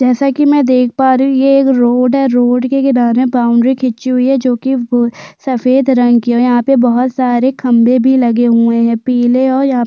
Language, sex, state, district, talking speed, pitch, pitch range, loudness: Hindi, female, Chhattisgarh, Sukma, 230 wpm, 250 Hz, 240-265 Hz, -11 LUFS